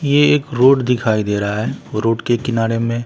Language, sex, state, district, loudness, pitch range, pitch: Hindi, male, Bihar, West Champaran, -16 LUFS, 110-130 Hz, 115 Hz